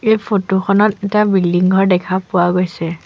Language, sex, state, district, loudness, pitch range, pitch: Assamese, female, Assam, Sonitpur, -15 LUFS, 180-205 Hz, 190 Hz